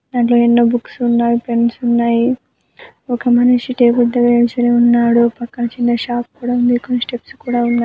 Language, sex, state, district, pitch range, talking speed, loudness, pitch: Telugu, female, Andhra Pradesh, Anantapur, 235-245 Hz, 160 wpm, -14 LUFS, 240 Hz